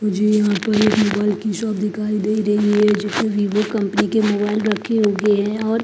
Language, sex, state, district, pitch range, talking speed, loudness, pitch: Hindi, female, Punjab, Kapurthala, 205-215 Hz, 205 wpm, -18 LUFS, 210 Hz